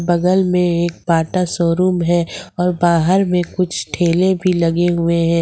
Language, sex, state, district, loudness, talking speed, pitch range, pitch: Hindi, female, Jharkhand, Ranchi, -16 LUFS, 165 wpm, 170-180 Hz, 175 Hz